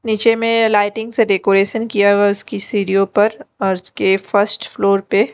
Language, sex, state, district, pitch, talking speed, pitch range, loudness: Hindi, female, Delhi, New Delhi, 205 Hz, 190 wpm, 195-225 Hz, -16 LUFS